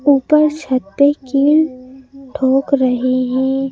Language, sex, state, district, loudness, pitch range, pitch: Hindi, female, Madhya Pradesh, Bhopal, -15 LUFS, 260-285 Hz, 270 Hz